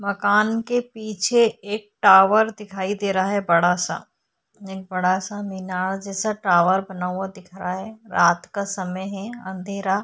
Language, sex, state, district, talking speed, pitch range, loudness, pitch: Hindi, female, Uttarakhand, Tehri Garhwal, 160 wpm, 190-210 Hz, -21 LUFS, 195 Hz